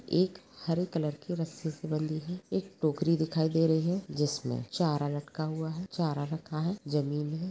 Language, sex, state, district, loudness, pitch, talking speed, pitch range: Hindi, female, Goa, North and South Goa, -32 LUFS, 160 Hz, 190 wpm, 150-170 Hz